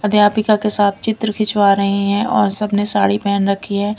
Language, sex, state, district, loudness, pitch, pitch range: Hindi, female, Delhi, New Delhi, -15 LUFS, 205 Hz, 200-210 Hz